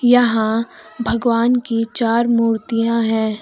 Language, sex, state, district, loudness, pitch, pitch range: Hindi, female, Uttar Pradesh, Lucknow, -17 LUFS, 230 Hz, 225-240 Hz